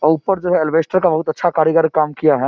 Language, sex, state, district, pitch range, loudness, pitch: Maithili, male, Bihar, Samastipur, 155-175 Hz, -16 LUFS, 160 Hz